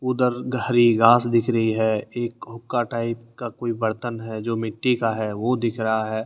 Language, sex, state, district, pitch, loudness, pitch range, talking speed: Hindi, male, Rajasthan, Jaipur, 115 Hz, -22 LUFS, 110-120 Hz, 200 wpm